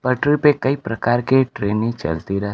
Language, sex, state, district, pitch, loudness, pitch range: Hindi, male, Bihar, Kaimur, 120 Hz, -19 LUFS, 105-135 Hz